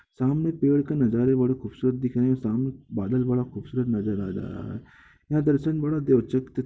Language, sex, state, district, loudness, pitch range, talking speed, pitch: Hindi, male, Bihar, Gopalganj, -25 LUFS, 125-140 Hz, 180 wpm, 130 Hz